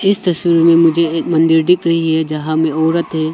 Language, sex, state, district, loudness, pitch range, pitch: Hindi, male, Arunachal Pradesh, Longding, -13 LUFS, 160-170 Hz, 165 Hz